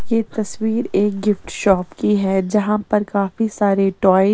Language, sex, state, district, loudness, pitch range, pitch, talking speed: Hindi, female, Bihar, West Champaran, -18 LUFS, 195-215 Hz, 205 Hz, 180 wpm